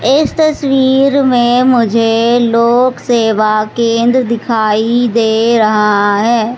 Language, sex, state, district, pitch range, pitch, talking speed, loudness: Hindi, male, Madhya Pradesh, Katni, 220-250 Hz, 235 Hz, 90 wpm, -11 LUFS